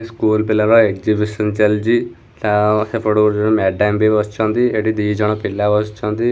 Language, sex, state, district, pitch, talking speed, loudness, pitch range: Odia, male, Odisha, Khordha, 105 Hz, 150 wpm, -16 LUFS, 105-110 Hz